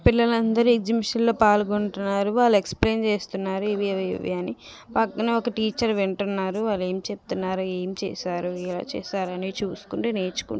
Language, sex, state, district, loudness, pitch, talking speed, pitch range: Telugu, female, Andhra Pradesh, Visakhapatnam, -24 LUFS, 200 Hz, 130 wpm, 185-220 Hz